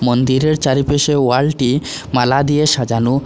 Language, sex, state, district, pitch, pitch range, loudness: Bengali, male, Assam, Hailakandi, 135 Hz, 125-145 Hz, -15 LUFS